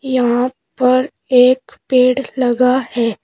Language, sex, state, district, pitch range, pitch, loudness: Hindi, female, Uttar Pradesh, Shamli, 245-260 Hz, 255 Hz, -15 LUFS